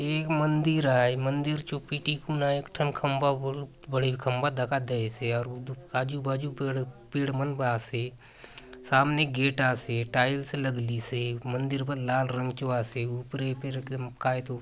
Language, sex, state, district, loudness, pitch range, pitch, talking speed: Halbi, male, Chhattisgarh, Bastar, -29 LUFS, 125-140 Hz, 130 Hz, 155 wpm